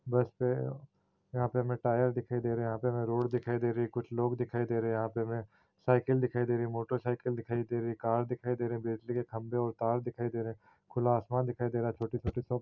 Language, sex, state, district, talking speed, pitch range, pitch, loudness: Hindi, male, Chhattisgarh, Raigarh, 280 wpm, 115-125 Hz, 120 Hz, -33 LUFS